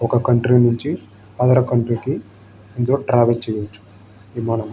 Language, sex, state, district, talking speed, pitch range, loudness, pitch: Telugu, male, Andhra Pradesh, Srikakulam, 140 wpm, 105-125 Hz, -18 LUFS, 120 Hz